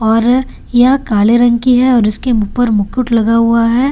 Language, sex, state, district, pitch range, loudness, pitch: Hindi, female, Delhi, New Delhi, 225-250 Hz, -11 LUFS, 235 Hz